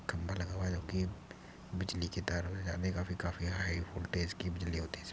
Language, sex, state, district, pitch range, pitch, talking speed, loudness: Hindi, male, Uttar Pradesh, Muzaffarnagar, 85-95 Hz, 90 Hz, 235 wpm, -38 LUFS